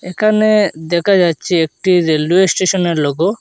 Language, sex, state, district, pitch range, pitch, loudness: Bengali, male, Assam, Hailakandi, 165-195 Hz, 180 Hz, -14 LUFS